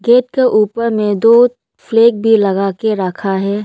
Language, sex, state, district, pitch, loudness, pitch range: Hindi, female, Arunachal Pradesh, Lower Dibang Valley, 220 Hz, -13 LUFS, 200-230 Hz